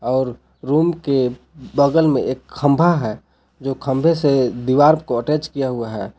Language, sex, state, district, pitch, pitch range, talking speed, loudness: Hindi, male, Jharkhand, Palamu, 135 Hz, 125-150 Hz, 165 wpm, -18 LUFS